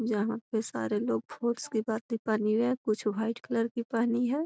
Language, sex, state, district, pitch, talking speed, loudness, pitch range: Magahi, female, Bihar, Gaya, 230 Hz, 175 wpm, -31 LUFS, 220-235 Hz